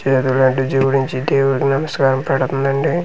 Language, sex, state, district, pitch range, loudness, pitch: Telugu, male, Andhra Pradesh, Manyam, 130-135 Hz, -16 LUFS, 135 Hz